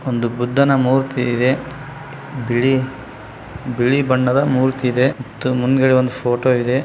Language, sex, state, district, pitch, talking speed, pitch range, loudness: Kannada, male, Karnataka, Bijapur, 130 Hz, 115 wpm, 125-135 Hz, -17 LUFS